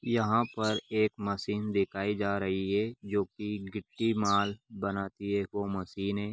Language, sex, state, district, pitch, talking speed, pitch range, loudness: Magahi, male, Bihar, Gaya, 100 Hz, 160 wpm, 100-110 Hz, -32 LUFS